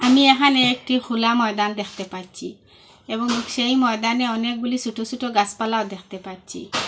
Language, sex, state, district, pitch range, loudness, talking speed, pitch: Bengali, female, Assam, Hailakandi, 210-250 Hz, -20 LUFS, 140 wpm, 230 Hz